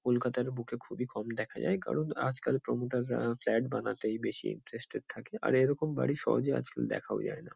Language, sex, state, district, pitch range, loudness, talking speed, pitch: Bengali, male, West Bengal, Kolkata, 115-125 Hz, -34 LUFS, 180 wpm, 125 Hz